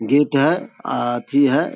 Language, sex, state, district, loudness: Hindi, male, Bihar, Saharsa, -19 LUFS